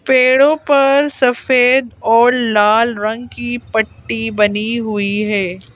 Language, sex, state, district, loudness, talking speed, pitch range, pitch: Hindi, female, Madhya Pradesh, Bhopal, -14 LUFS, 115 wpm, 215-255 Hz, 235 Hz